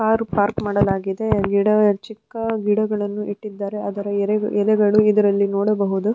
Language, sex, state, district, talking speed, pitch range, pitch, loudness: Kannada, female, Karnataka, Dharwad, 105 wpm, 200-215 Hz, 210 Hz, -20 LUFS